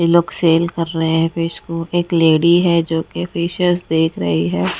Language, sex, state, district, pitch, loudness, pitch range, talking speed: Hindi, female, Odisha, Nuapada, 165 Hz, -16 LUFS, 160-170 Hz, 175 wpm